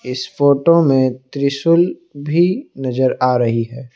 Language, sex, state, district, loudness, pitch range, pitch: Hindi, male, Assam, Kamrup Metropolitan, -16 LUFS, 130-165 Hz, 140 Hz